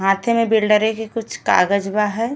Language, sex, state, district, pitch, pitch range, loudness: Bhojpuri, female, Uttar Pradesh, Ghazipur, 220 Hz, 200-230 Hz, -18 LUFS